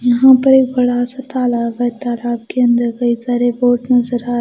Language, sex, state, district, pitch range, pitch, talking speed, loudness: Hindi, female, Odisha, Malkangiri, 240-250 Hz, 245 Hz, 205 wpm, -15 LUFS